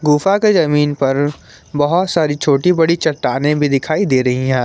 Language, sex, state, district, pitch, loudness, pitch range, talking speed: Hindi, male, Jharkhand, Garhwa, 150 Hz, -15 LUFS, 140-165 Hz, 180 wpm